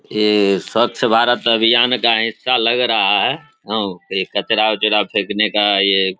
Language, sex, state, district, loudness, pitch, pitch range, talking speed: Hindi, male, Bihar, Samastipur, -15 LUFS, 110 Hz, 100-115 Hz, 165 wpm